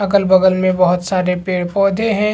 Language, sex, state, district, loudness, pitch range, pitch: Hindi, male, Chhattisgarh, Rajnandgaon, -15 LUFS, 180-200 Hz, 185 Hz